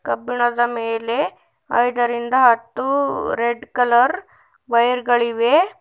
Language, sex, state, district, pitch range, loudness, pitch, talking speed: Kannada, female, Karnataka, Bidar, 235-250 Hz, -19 LUFS, 240 Hz, 85 wpm